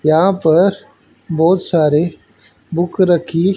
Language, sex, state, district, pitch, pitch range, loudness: Hindi, male, Haryana, Jhajjar, 170 Hz, 155-180 Hz, -15 LUFS